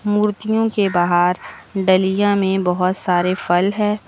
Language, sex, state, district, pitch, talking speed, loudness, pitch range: Hindi, female, Uttar Pradesh, Lucknow, 190 Hz, 135 wpm, -17 LUFS, 180-210 Hz